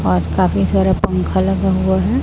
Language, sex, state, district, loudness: Hindi, female, Chhattisgarh, Raipur, -16 LUFS